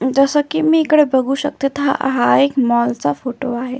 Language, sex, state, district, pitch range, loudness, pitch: Marathi, female, Maharashtra, Solapur, 255-290 Hz, -16 LUFS, 270 Hz